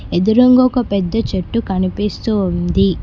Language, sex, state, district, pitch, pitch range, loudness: Telugu, female, Telangana, Mahabubabad, 200 Hz, 185-230 Hz, -15 LUFS